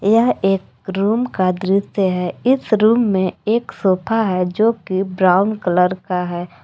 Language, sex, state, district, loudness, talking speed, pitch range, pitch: Hindi, female, Jharkhand, Palamu, -17 LUFS, 155 wpm, 185-215 Hz, 190 Hz